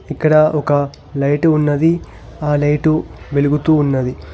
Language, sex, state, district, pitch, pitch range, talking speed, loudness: Telugu, male, Telangana, Hyderabad, 150 Hz, 140-155 Hz, 110 wpm, -16 LUFS